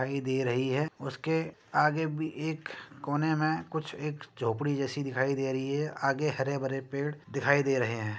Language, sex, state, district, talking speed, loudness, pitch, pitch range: Hindi, male, Uttar Pradesh, Jyotiba Phule Nagar, 190 wpm, -31 LUFS, 140 Hz, 135-155 Hz